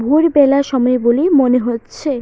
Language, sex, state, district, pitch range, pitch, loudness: Bengali, female, West Bengal, Jalpaiguri, 250-285 Hz, 270 Hz, -14 LUFS